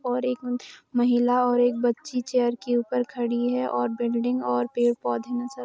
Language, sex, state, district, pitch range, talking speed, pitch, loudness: Hindi, female, Bihar, Gopalganj, 235-250 Hz, 180 wpm, 245 Hz, -25 LUFS